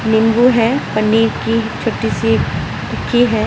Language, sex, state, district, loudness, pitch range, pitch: Hindi, female, Uttar Pradesh, Etah, -15 LUFS, 220-240 Hz, 225 Hz